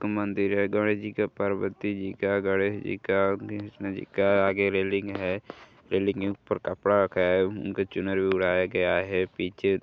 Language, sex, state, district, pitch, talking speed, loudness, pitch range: Hindi, male, Uttar Pradesh, Gorakhpur, 100 Hz, 165 wpm, -27 LUFS, 95-100 Hz